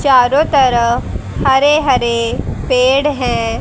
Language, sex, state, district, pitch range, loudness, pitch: Hindi, female, Haryana, Charkhi Dadri, 235-280 Hz, -13 LUFS, 255 Hz